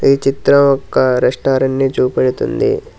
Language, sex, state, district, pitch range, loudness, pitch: Telugu, male, Telangana, Hyderabad, 130-140 Hz, -14 LUFS, 135 Hz